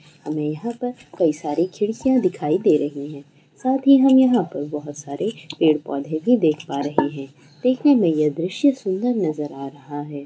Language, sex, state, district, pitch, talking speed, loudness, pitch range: Hindi, female, Bihar, Kishanganj, 155 Hz, 185 wpm, -21 LUFS, 145-225 Hz